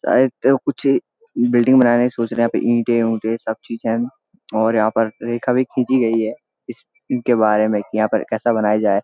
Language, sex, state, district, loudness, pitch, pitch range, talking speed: Hindi, male, Uttarakhand, Uttarkashi, -18 LUFS, 120 Hz, 110-125 Hz, 220 wpm